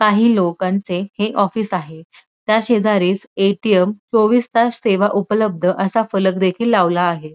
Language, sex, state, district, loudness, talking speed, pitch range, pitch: Marathi, female, Maharashtra, Dhule, -17 LUFS, 140 wpm, 185-220 Hz, 200 Hz